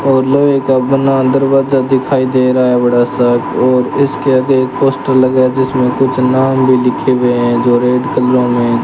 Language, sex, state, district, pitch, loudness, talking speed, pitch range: Hindi, male, Rajasthan, Bikaner, 130 Hz, -11 LUFS, 205 wpm, 125-135 Hz